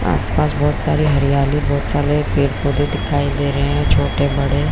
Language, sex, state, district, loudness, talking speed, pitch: Hindi, female, Chhattisgarh, Korba, -17 LUFS, 215 wpm, 100 Hz